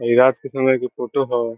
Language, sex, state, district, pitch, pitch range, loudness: Bhojpuri, male, Bihar, Saran, 125 Hz, 120-130 Hz, -19 LUFS